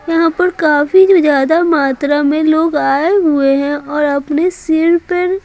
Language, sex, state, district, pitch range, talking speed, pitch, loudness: Hindi, female, Bihar, Patna, 290-345 Hz, 145 wpm, 315 Hz, -12 LUFS